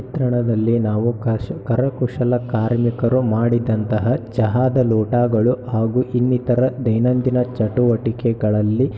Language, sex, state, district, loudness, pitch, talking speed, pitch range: Kannada, male, Karnataka, Shimoga, -19 LUFS, 120 Hz, 75 wpm, 110-125 Hz